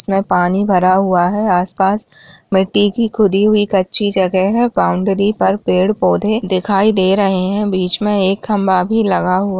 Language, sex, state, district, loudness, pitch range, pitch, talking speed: Hindi, female, Bihar, Jamui, -14 LUFS, 185-210 Hz, 195 Hz, 175 wpm